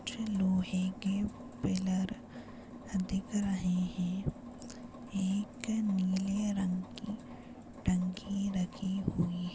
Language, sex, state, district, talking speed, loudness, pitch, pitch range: Hindi, female, Maharashtra, Sindhudurg, 95 wpm, -35 LUFS, 195 Hz, 185-215 Hz